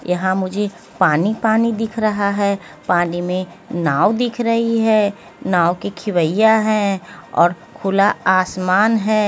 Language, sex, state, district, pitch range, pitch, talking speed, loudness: Hindi, female, Haryana, Jhajjar, 180-215 Hz, 200 Hz, 135 wpm, -17 LUFS